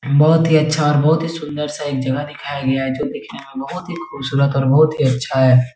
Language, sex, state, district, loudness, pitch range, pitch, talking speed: Hindi, male, Uttar Pradesh, Etah, -17 LUFS, 135-155 Hz, 145 Hz, 240 wpm